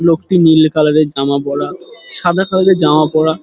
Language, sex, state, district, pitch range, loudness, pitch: Bengali, male, West Bengal, Dakshin Dinajpur, 150-175 Hz, -12 LUFS, 155 Hz